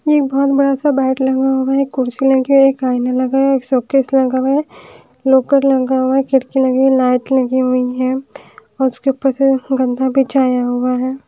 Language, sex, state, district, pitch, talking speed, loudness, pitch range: Hindi, female, Haryana, Rohtak, 265 Hz, 205 wpm, -15 LUFS, 255-270 Hz